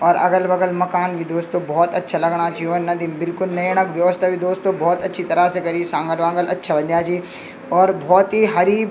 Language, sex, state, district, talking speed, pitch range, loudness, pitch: Garhwali, male, Uttarakhand, Tehri Garhwal, 215 wpm, 170-185 Hz, -18 LUFS, 180 Hz